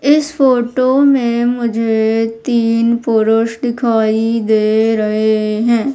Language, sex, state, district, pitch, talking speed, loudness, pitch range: Hindi, female, Madhya Pradesh, Umaria, 230 Hz, 100 wpm, -14 LUFS, 220-245 Hz